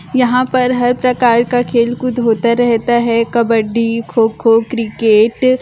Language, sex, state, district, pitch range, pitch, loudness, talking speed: Hindi, male, Chhattisgarh, Bilaspur, 230-250 Hz, 235 Hz, -13 LUFS, 150 wpm